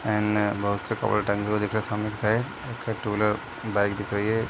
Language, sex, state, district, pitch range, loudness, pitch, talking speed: Hindi, male, Bihar, East Champaran, 105-110 Hz, -26 LUFS, 105 Hz, 265 wpm